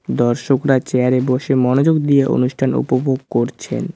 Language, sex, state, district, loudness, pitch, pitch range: Bengali, male, West Bengal, Cooch Behar, -16 LUFS, 130 Hz, 125-135 Hz